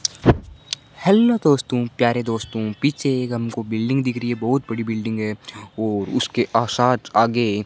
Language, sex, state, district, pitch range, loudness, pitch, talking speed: Hindi, male, Rajasthan, Bikaner, 110-130 Hz, -21 LUFS, 120 Hz, 155 wpm